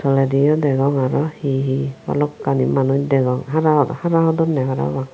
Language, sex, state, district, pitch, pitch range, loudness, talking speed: Chakma, female, Tripura, Unakoti, 140 Hz, 135-150 Hz, -18 LUFS, 140 wpm